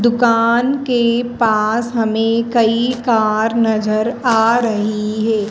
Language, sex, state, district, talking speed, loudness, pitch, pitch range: Hindi, female, Madhya Pradesh, Dhar, 110 wpm, -15 LUFS, 230 Hz, 220-240 Hz